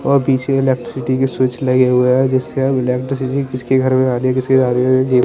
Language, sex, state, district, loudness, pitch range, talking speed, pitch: Hindi, male, Chandigarh, Chandigarh, -15 LUFS, 125-135 Hz, 205 wpm, 130 Hz